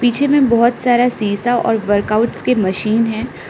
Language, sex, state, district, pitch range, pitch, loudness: Hindi, female, Arunachal Pradesh, Lower Dibang Valley, 215-245 Hz, 235 Hz, -15 LUFS